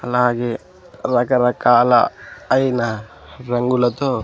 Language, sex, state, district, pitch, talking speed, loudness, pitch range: Telugu, male, Andhra Pradesh, Sri Satya Sai, 125 Hz, 55 wpm, -18 LUFS, 120-125 Hz